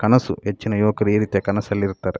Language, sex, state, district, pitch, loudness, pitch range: Kannada, male, Karnataka, Dakshina Kannada, 105 Hz, -21 LUFS, 100-105 Hz